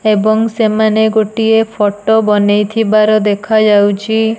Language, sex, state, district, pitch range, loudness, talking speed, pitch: Odia, female, Odisha, Nuapada, 210-220 Hz, -11 LUFS, 95 wpm, 215 Hz